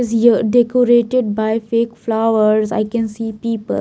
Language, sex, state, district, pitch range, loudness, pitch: English, female, Maharashtra, Mumbai Suburban, 220-235 Hz, -16 LUFS, 230 Hz